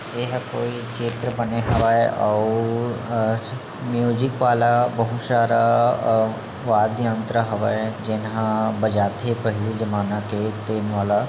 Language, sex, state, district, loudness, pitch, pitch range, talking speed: Chhattisgarhi, male, Chhattisgarh, Bilaspur, -22 LUFS, 115 Hz, 110-120 Hz, 115 wpm